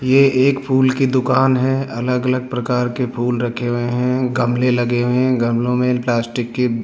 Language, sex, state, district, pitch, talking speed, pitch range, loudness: Hindi, male, Rajasthan, Jaipur, 125 Hz, 200 wpm, 120-130 Hz, -17 LUFS